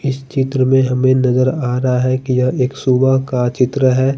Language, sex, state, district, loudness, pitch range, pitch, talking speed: Hindi, male, Bihar, Patna, -15 LUFS, 125-130 Hz, 130 Hz, 200 wpm